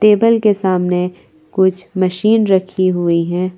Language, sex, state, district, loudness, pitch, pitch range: Hindi, female, Jharkhand, Palamu, -15 LUFS, 185 Hz, 180-200 Hz